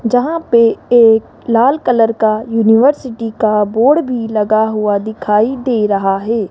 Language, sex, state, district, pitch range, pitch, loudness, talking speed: Hindi, female, Rajasthan, Jaipur, 215-245 Hz, 225 Hz, -13 LUFS, 145 wpm